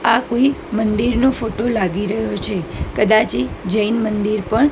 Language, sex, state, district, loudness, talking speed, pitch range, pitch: Gujarati, female, Gujarat, Gandhinagar, -18 LUFS, 140 wpm, 210-235 Hz, 220 Hz